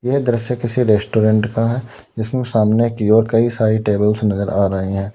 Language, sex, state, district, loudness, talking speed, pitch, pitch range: Hindi, male, Uttar Pradesh, Lalitpur, -17 LUFS, 200 wpm, 110 Hz, 105-120 Hz